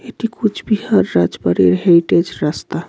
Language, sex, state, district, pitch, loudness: Bengali, male, West Bengal, Cooch Behar, 170 Hz, -15 LUFS